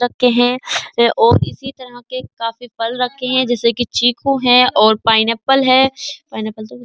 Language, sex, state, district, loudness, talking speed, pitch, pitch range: Hindi, female, Uttar Pradesh, Jyotiba Phule Nagar, -15 LUFS, 165 wpm, 245 Hz, 230-255 Hz